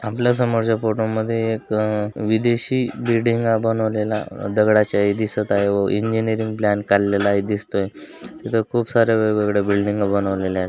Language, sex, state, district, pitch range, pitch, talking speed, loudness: Marathi, male, Maharashtra, Dhule, 100-115 Hz, 110 Hz, 140 wpm, -20 LUFS